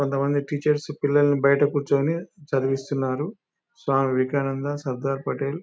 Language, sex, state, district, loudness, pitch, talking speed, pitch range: Telugu, male, Telangana, Nalgonda, -24 LUFS, 140 Hz, 115 wpm, 135-150 Hz